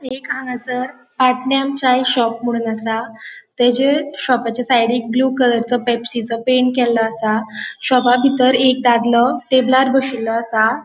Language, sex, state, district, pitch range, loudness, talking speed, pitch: Konkani, female, Goa, North and South Goa, 235-260 Hz, -16 LUFS, 125 wpm, 245 Hz